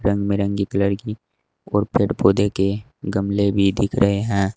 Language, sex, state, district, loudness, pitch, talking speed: Hindi, male, Uttar Pradesh, Shamli, -20 LUFS, 100 Hz, 170 wpm